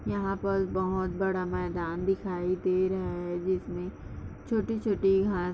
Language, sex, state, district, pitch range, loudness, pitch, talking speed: Hindi, female, Chhattisgarh, Rajnandgaon, 180-195 Hz, -30 LUFS, 185 Hz, 130 wpm